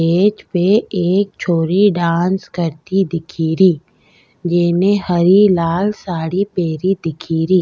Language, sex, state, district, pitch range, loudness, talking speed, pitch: Rajasthani, female, Rajasthan, Nagaur, 165-195 Hz, -16 LUFS, 100 wpm, 175 Hz